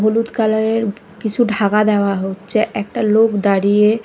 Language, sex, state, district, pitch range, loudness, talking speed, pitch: Bengali, female, Odisha, Nuapada, 205-220 Hz, -16 LUFS, 150 wpm, 215 Hz